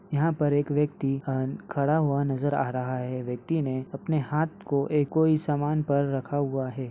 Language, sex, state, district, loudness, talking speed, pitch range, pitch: Hindi, male, Uttar Pradesh, Ghazipur, -27 LUFS, 200 wpm, 135-150 Hz, 145 Hz